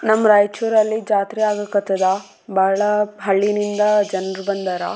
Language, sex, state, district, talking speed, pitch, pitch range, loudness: Kannada, female, Karnataka, Raichur, 110 wpm, 205 Hz, 195-210 Hz, -18 LUFS